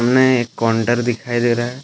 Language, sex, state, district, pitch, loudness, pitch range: Hindi, male, Jharkhand, Deoghar, 120 Hz, -17 LUFS, 120-125 Hz